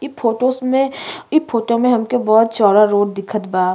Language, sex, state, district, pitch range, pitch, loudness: Bhojpuri, female, Uttar Pradesh, Ghazipur, 205-255 Hz, 230 Hz, -16 LUFS